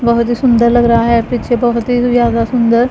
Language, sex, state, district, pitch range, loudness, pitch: Hindi, female, Punjab, Pathankot, 235-245 Hz, -12 LUFS, 235 Hz